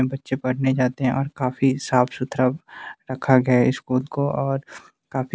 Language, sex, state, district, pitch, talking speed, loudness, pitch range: Hindi, male, Bihar, West Champaran, 130 Hz, 155 wpm, -22 LUFS, 130-135 Hz